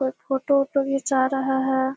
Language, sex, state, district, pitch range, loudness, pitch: Hindi, female, Bihar, Kishanganj, 265-275 Hz, -22 LUFS, 270 Hz